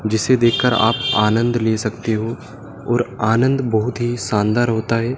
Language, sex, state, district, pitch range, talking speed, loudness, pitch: Hindi, male, Madhya Pradesh, Dhar, 110-125 Hz, 160 wpm, -18 LUFS, 115 Hz